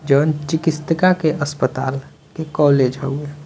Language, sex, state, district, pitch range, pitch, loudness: Bhojpuri, male, Bihar, Muzaffarpur, 140-160 Hz, 145 Hz, -18 LUFS